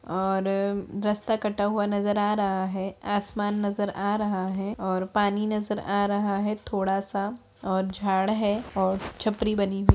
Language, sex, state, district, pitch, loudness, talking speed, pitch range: Hindi, female, Bihar, Jahanabad, 200 Hz, -27 LUFS, 165 wpm, 195-210 Hz